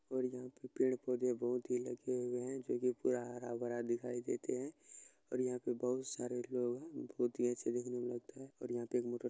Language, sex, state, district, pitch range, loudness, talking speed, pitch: Maithili, male, Bihar, Supaul, 120-125 Hz, -40 LUFS, 220 wpm, 125 Hz